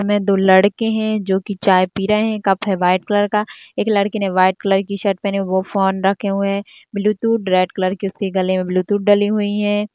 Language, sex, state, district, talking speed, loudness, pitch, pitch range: Hindi, female, Rajasthan, Nagaur, 240 wpm, -17 LUFS, 200 Hz, 190-205 Hz